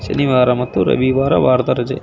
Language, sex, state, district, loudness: Kannada, male, Karnataka, Belgaum, -15 LUFS